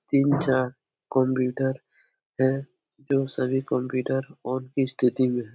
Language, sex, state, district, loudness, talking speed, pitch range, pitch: Hindi, male, Uttar Pradesh, Etah, -26 LUFS, 130 wpm, 130-135 Hz, 130 Hz